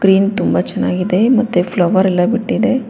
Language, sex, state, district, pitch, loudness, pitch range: Kannada, female, Karnataka, Bangalore, 195 Hz, -14 LUFS, 180-230 Hz